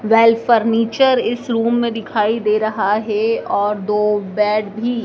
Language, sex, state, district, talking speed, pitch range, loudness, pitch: Hindi, female, Madhya Pradesh, Dhar, 155 wpm, 210-230 Hz, -17 LUFS, 225 Hz